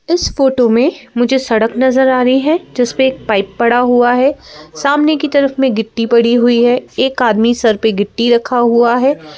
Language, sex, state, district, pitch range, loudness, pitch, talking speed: Hindi, female, Madhya Pradesh, Bhopal, 235-265 Hz, -12 LUFS, 245 Hz, 190 wpm